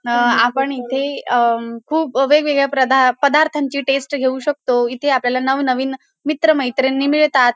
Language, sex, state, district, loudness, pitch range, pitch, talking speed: Marathi, female, Maharashtra, Dhule, -16 LUFS, 250-285 Hz, 270 Hz, 125 wpm